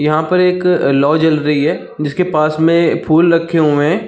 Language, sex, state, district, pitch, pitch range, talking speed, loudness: Hindi, male, Chhattisgarh, Balrampur, 160 Hz, 150-170 Hz, 205 wpm, -13 LUFS